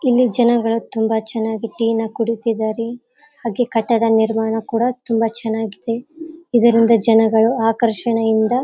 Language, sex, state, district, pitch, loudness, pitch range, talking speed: Kannada, female, Karnataka, Raichur, 230 Hz, -17 LUFS, 225-240 Hz, 105 wpm